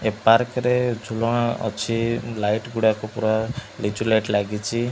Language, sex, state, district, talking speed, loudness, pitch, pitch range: Odia, male, Odisha, Malkangiri, 120 wpm, -22 LUFS, 110 Hz, 110-120 Hz